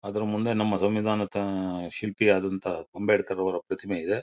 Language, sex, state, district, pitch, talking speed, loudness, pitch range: Kannada, male, Karnataka, Mysore, 100 Hz, 155 wpm, -27 LUFS, 95-105 Hz